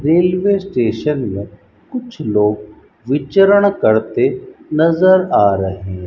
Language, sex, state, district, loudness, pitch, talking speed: Hindi, male, Rajasthan, Bikaner, -15 LUFS, 140 Hz, 100 wpm